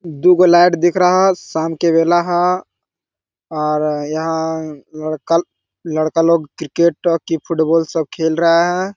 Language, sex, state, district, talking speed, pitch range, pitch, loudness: Hindi, male, Jharkhand, Sahebganj, 140 wpm, 160-175 Hz, 165 Hz, -15 LUFS